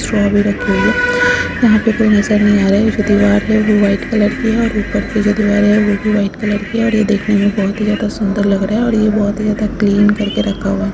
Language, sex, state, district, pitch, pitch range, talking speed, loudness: Bhojpuri, female, Uttar Pradesh, Gorakhpur, 210 Hz, 205-215 Hz, 300 wpm, -14 LUFS